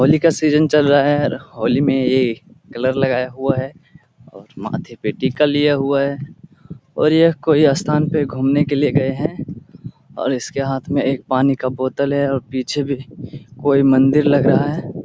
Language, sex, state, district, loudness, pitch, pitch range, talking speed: Hindi, male, Bihar, Jahanabad, -17 LUFS, 140 Hz, 135-150 Hz, 185 wpm